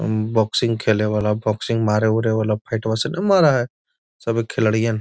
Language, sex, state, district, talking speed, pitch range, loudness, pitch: Magahi, male, Bihar, Gaya, 85 wpm, 110-115 Hz, -19 LUFS, 110 Hz